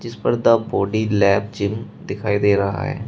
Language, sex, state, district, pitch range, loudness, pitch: Hindi, male, Uttar Pradesh, Shamli, 100-110 Hz, -19 LUFS, 105 Hz